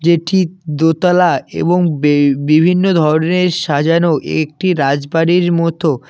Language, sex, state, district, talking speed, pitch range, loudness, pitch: Bengali, male, West Bengal, Cooch Behar, 100 wpm, 150-175 Hz, -13 LUFS, 165 Hz